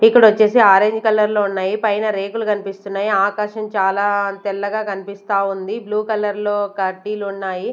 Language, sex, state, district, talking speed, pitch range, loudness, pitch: Telugu, female, Andhra Pradesh, Sri Satya Sai, 115 wpm, 195-215 Hz, -18 LUFS, 205 Hz